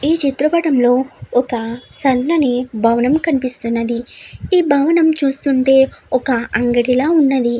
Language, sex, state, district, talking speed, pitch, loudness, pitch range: Telugu, female, Andhra Pradesh, Chittoor, 120 wpm, 265 Hz, -15 LUFS, 245-290 Hz